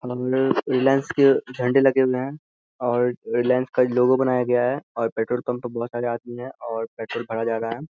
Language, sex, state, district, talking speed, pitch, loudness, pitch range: Hindi, male, Bihar, Purnia, 195 wpm, 125 Hz, -22 LUFS, 120-130 Hz